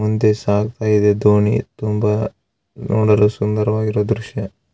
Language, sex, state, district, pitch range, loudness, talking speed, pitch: Kannada, male, Karnataka, Raichur, 105-110 Hz, -17 LUFS, 100 wpm, 105 Hz